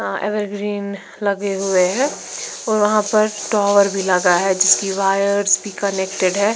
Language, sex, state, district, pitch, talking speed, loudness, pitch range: Hindi, female, Bihar, Patna, 200 Hz, 155 wpm, -17 LUFS, 195-210 Hz